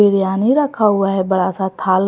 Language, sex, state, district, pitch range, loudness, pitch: Hindi, female, Jharkhand, Garhwa, 190-205 Hz, -16 LUFS, 195 Hz